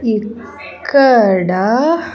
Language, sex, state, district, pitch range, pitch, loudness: Telugu, female, Andhra Pradesh, Sri Satya Sai, 210-280 Hz, 230 Hz, -13 LUFS